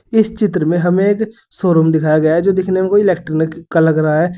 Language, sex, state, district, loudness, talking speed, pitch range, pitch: Hindi, male, Uttar Pradesh, Saharanpur, -14 LUFS, 245 wpm, 160-195 Hz, 175 Hz